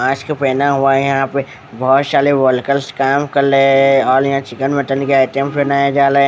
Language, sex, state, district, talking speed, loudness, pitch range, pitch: Hindi, male, Odisha, Khordha, 230 wpm, -14 LUFS, 135-140 Hz, 135 Hz